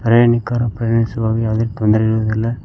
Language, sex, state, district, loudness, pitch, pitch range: Kannada, male, Karnataka, Koppal, -16 LUFS, 115 Hz, 110-115 Hz